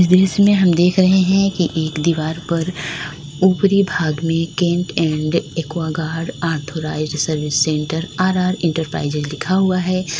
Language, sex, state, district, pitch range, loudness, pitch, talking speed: Hindi, female, Uttar Pradesh, Lalitpur, 155-185 Hz, -18 LUFS, 165 Hz, 140 wpm